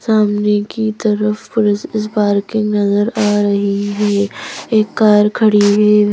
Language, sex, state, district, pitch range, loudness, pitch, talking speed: Hindi, female, Madhya Pradesh, Bhopal, 205-215 Hz, -14 LUFS, 210 Hz, 135 wpm